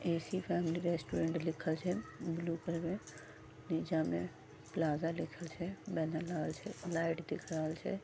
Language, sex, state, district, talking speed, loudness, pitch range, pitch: Maithili, female, Bihar, Vaishali, 150 wpm, -38 LUFS, 160-175 Hz, 165 Hz